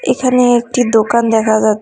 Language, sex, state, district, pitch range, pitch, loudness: Bengali, female, West Bengal, Cooch Behar, 220-245 Hz, 235 Hz, -12 LUFS